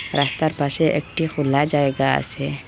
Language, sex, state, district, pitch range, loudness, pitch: Bengali, female, Assam, Hailakandi, 140-155 Hz, -20 LUFS, 145 Hz